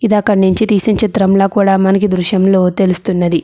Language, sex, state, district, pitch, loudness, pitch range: Telugu, female, Andhra Pradesh, Chittoor, 195 Hz, -12 LUFS, 190-205 Hz